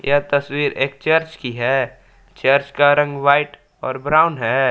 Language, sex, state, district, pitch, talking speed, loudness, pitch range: Hindi, male, Jharkhand, Palamu, 140 Hz, 165 wpm, -18 LUFS, 135-145 Hz